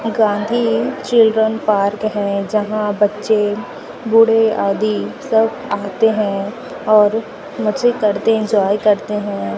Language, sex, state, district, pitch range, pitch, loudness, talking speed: Hindi, female, Chhattisgarh, Raipur, 205-225 Hz, 215 Hz, -16 LUFS, 105 wpm